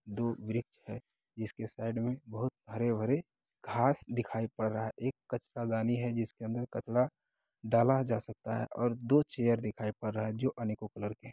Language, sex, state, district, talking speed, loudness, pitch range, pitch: Hindi, male, Bihar, Begusarai, 190 wpm, -34 LUFS, 110-125 Hz, 115 Hz